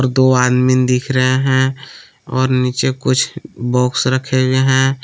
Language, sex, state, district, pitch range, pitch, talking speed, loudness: Hindi, male, Jharkhand, Palamu, 125-130 Hz, 130 Hz, 145 wpm, -15 LUFS